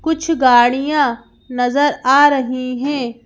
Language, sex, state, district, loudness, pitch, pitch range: Hindi, female, Madhya Pradesh, Bhopal, -15 LUFS, 265 Hz, 250-290 Hz